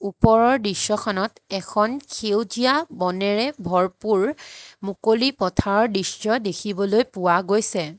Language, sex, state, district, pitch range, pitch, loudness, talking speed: Assamese, female, Assam, Hailakandi, 190-230 Hz, 210 Hz, -21 LUFS, 90 wpm